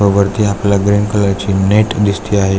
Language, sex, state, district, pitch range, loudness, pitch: Marathi, male, Maharashtra, Aurangabad, 100-105 Hz, -13 LUFS, 100 Hz